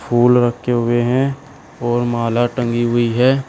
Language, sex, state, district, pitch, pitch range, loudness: Hindi, male, Uttar Pradesh, Shamli, 120 Hz, 120-125 Hz, -17 LUFS